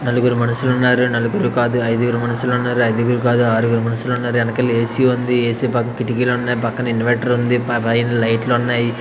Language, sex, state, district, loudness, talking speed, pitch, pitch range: Telugu, male, Andhra Pradesh, Visakhapatnam, -17 LUFS, 175 wpm, 120 Hz, 115-125 Hz